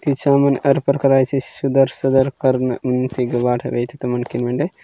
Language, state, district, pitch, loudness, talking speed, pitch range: Gondi, Chhattisgarh, Sukma, 135 Hz, -18 LUFS, 160 wpm, 125-140 Hz